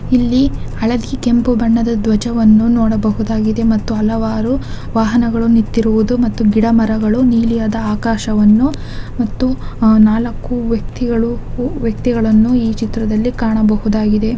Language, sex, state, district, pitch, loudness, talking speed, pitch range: Kannada, female, Karnataka, Dakshina Kannada, 225 Hz, -14 LUFS, 90 wpm, 220-235 Hz